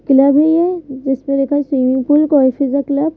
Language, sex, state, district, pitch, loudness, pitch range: Hindi, female, Madhya Pradesh, Bhopal, 280 Hz, -14 LUFS, 270-295 Hz